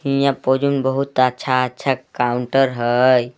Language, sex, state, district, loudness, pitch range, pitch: Magahi, male, Jharkhand, Palamu, -18 LUFS, 125-135 Hz, 130 Hz